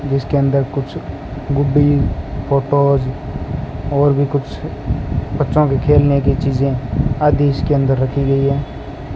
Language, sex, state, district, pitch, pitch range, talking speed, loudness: Hindi, male, Rajasthan, Bikaner, 140 Hz, 135-140 Hz, 125 wpm, -16 LUFS